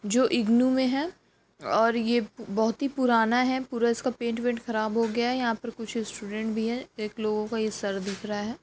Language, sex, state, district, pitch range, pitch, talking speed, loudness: Hindi, female, Bihar, Jamui, 220-245 Hz, 230 Hz, 220 wpm, -27 LUFS